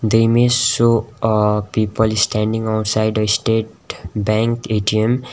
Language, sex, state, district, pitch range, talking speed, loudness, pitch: English, male, Sikkim, Gangtok, 110-115 Hz, 125 wpm, -17 LUFS, 110 Hz